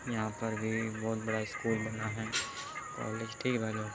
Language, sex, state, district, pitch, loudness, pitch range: Hindi, male, Uttar Pradesh, Etah, 110 Hz, -35 LUFS, 110-115 Hz